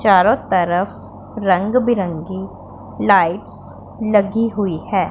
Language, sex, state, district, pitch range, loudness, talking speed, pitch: Hindi, female, Punjab, Pathankot, 185-220 Hz, -17 LUFS, 95 wpm, 195 Hz